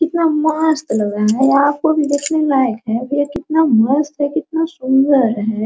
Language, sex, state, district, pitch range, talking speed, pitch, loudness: Hindi, female, Bihar, Araria, 245-315 Hz, 160 wpm, 285 Hz, -15 LUFS